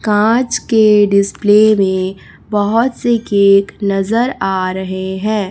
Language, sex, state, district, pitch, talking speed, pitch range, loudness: Hindi, female, Chhattisgarh, Raipur, 205 Hz, 120 wpm, 195-220 Hz, -13 LUFS